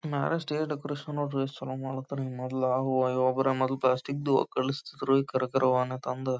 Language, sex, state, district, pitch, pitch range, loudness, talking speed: Kannada, male, Karnataka, Gulbarga, 135 Hz, 130-140 Hz, -29 LUFS, 180 wpm